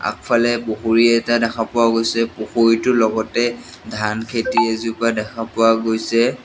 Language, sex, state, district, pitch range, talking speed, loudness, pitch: Assamese, male, Assam, Sonitpur, 110-120 Hz, 130 wpm, -18 LUFS, 115 Hz